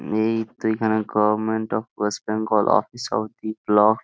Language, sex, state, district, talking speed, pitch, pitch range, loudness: Bengali, male, West Bengal, Jhargram, 180 wpm, 110 Hz, 105-110 Hz, -22 LUFS